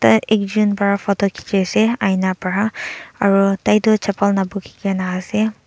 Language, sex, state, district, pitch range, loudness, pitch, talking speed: Nagamese, male, Nagaland, Dimapur, 195-215 Hz, -18 LUFS, 200 Hz, 160 wpm